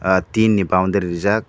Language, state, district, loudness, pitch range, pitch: Kokborok, Tripura, Dhalai, -18 LUFS, 90-105 Hz, 95 Hz